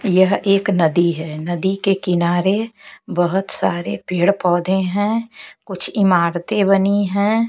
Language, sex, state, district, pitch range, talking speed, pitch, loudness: Hindi, female, Haryana, Jhajjar, 175-200 Hz, 130 wpm, 190 Hz, -18 LUFS